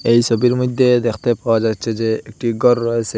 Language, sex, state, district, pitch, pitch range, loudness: Bengali, male, Assam, Hailakandi, 115 Hz, 115-120 Hz, -17 LUFS